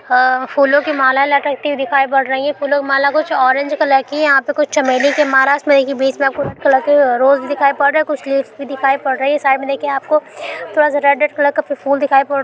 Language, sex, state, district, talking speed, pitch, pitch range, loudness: Hindi, female, Uttar Pradesh, Budaun, 275 wpm, 280 Hz, 270-290 Hz, -14 LUFS